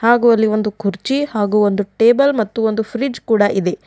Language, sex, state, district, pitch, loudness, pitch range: Kannada, female, Karnataka, Bidar, 220 Hz, -16 LUFS, 205-235 Hz